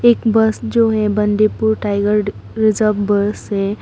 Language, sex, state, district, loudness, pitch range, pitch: Hindi, female, Arunachal Pradesh, Papum Pare, -16 LUFS, 205-220 Hz, 215 Hz